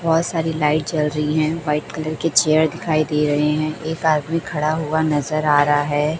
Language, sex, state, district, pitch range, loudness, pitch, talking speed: Hindi, female, Chhattisgarh, Raipur, 150-160 Hz, -19 LUFS, 155 Hz, 215 wpm